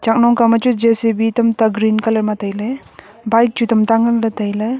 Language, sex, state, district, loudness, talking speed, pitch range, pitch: Wancho, female, Arunachal Pradesh, Longding, -15 LUFS, 225 wpm, 220-230 Hz, 225 Hz